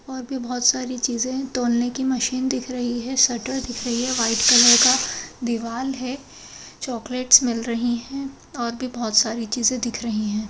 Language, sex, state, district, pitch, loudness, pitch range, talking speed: Hindi, female, Uttar Pradesh, Jalaun, 245 Hz, -20 LUFS, 235-255 Hz, 190 wpm